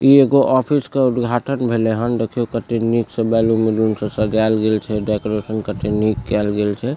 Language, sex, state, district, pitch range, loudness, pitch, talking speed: Maithili, male, Bihar, Supaul, 110-120 Hz, -18 LUFS, 115 Hz, 200 wpm